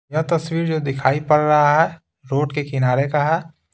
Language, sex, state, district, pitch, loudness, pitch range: Hindi, male, Bihar, Patna, 150 Hz, -19 LUFS, 140-160 Hz